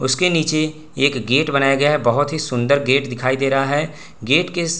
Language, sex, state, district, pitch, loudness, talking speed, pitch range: Hindi, male, Bihar, Gopalganj, 140 Hz, -18 LUFS, 225 wpm, 130-155 Hz